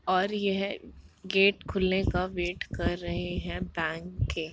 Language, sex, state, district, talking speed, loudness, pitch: Hindi, female, Bihar, Jahanabad, 160 wpm, -29 LUFS, 180 Hz